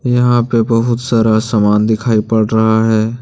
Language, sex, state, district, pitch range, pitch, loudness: Hindi, male, Jharkhand, Deoghar, 110-120 Hz, 115 Hz, -13 LUFS